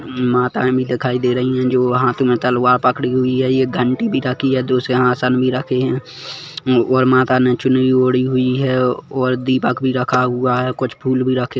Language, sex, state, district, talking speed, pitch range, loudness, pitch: Hindi, male, Chhattisgarh, Kabirdham, 205 wpm, 125-130 Hz, -16 LUFS, 125 Hz